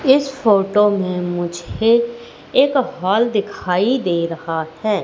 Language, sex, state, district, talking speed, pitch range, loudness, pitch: Hindi, female, Madhya Pradesh, Katni, 120 wpm, 175-235 Hz, -18 LUFS, 205 Hz